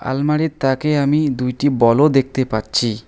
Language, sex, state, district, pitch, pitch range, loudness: Bengali, male, West Bengal, Alipurduar, 135 Hz, 120-145 Hz, -17 LUFS